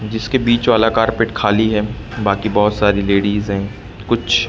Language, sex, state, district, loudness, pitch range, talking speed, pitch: Hindi, male, Madhya Pradesh, Katni, -16 LUFS, 105-115 Hz, 160 wpm, 110 Hz